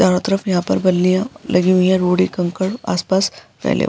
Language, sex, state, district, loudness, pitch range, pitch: Hindi, female, Uttar Pradesh, Jyotiba Phule Nagar, -17 LUFS, 180-190 Hz, 185 Hz